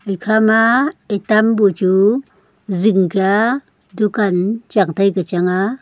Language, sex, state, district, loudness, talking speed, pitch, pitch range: Wancho, female, Arunachal Pradesh, Longding, -15 LUFS, 135 wpm, 205 Hz, 190-220 Hz